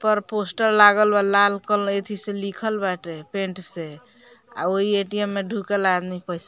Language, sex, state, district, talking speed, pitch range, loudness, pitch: Bhojpuri, female, Bihar, Muzaffarpur, 185 wpm, 185-210 Hz, -21 LUFS, 200 Hz